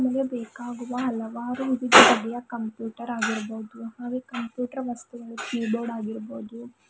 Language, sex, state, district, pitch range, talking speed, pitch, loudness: Kannada, female, Karnataka, Bidar, 230-250 Hz, 115 wpm, 240 Hz, -24 LUFS